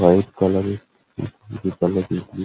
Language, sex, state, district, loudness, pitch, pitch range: Bengali, male, West Bengal, Purulia, -23 LUFS, 95 Hz, 95-100 Hz